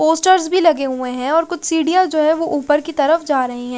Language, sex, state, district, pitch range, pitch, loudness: Hindi, female, Haryana, Rohtak, 280-330 Hz, 315 Hz, -16 LUFS